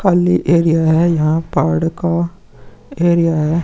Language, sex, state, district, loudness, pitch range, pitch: Hindi, male, Bihar, Vaishali, -15 LUFS, 160-170 Hz, 170 Hz